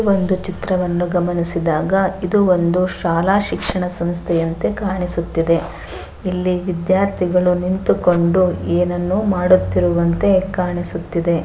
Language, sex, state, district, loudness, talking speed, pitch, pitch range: Kannada, female, Karnataka, Bellary, -18 LUFS, 80 wpm, 180 Hz, 170-185 Hz